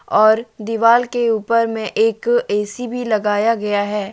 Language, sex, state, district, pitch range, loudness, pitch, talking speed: Hindi, male, Jharkhand, Deoghar, 210-230 Hz, -17 LUFS, 225 Hz, 160 wpm